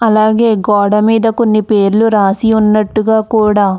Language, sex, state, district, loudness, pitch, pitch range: Telugu, female, Andhra Pradesh, Anantapur, -11 LUFS, 215 Hz, 210-225 Hz